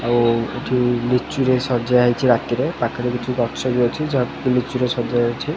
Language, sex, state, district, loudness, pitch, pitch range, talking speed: Odia, male, Odisha, Khordha, -19 LUFS, 125 Hz, 120-125 Hz, 160 wpm